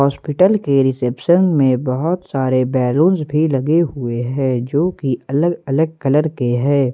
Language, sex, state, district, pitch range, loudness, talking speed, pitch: Hindi, male, Jharkhand, Ranchi, 130-160 Hz, -17 LUFS, 145 wpm, 140 Hz